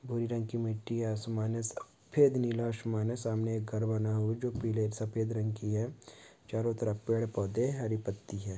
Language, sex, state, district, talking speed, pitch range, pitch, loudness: Hindi, male, Uttar Pradesh, Gorakhpur, 210 wpm, 110-115 Hz, 110 Hz, -34 LUFS